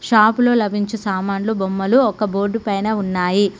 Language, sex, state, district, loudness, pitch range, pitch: Telugu, female, Telangana, Mahabubabad, -18 LUFS, 195-220 Hz, 205 Hz